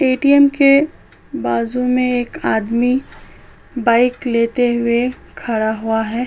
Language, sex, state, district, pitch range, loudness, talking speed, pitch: Hindi, female, Uttar Pradesh, Budaun, 235-260 Hz, -16 LUFS, 115 wpm, 245 Hz